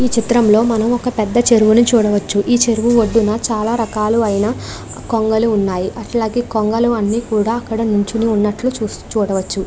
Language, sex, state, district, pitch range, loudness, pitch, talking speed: Telugu, female, Andhra Pradesh, Krishna, 210-235 Hz, -15 LUFS, 225 Hz, 150 wpm